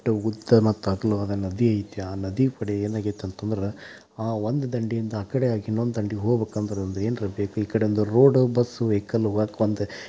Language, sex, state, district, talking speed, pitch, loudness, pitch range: Kannada, male, Karnataka, Dharwad, 85 wpm, 110 Hz, -25 LUFS, 100-115 Hz